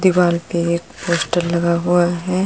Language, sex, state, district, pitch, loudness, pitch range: Hindi, female, Uttar Pradesh, Jalaun, 175 Hz, -18 LUFS, 170-180 Hz